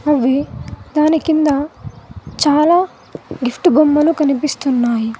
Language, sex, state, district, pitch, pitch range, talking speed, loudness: Telugu, female, Telangana, Mahabubabad, 295 Hz, 270-310 Hz, 80 wpm, -15 LUFS